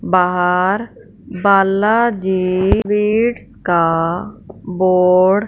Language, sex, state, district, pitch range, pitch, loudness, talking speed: Hindi, female, Punjab, Fazilka, 180-210 Hz, 190 Hz, -15 LUFS, 65 wpm